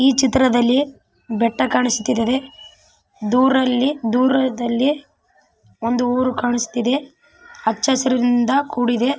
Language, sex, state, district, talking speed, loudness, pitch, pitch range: Kannada, female, Karnataka, Raichur, 85 wpm, -18 LUFS, 255 Hz, 240-265 Hz